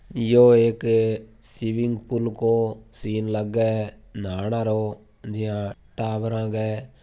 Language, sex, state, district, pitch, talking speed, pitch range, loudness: Marwari, male, Rajasthan, Churu, 110 Hz, 100 wpm, 110-115 Hz, -23 LUFS